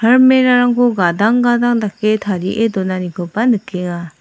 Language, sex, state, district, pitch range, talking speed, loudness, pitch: Garo, female, Meghalaya, South Garo Hills, 185-245 Hz, 115 wpm, -14 LUFS, 220 Hz